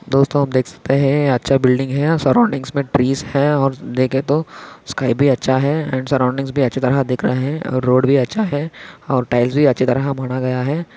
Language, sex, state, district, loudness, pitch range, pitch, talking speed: Hindi, male, Maharashtra, Aurangabad, -17 LUFS, 130-140 Hz, 135 Hz, 230 wpm